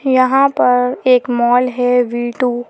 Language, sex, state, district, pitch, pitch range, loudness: Hindi, female, Madhya Pradesh, Bhopal, 250 Hz, 245-255 Hz, -14 LUFS